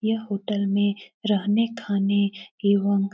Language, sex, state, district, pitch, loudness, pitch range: Hindi, female, Bihar, Lakhisarai, 200 Hz, -24 LUFS, 200-215 Hz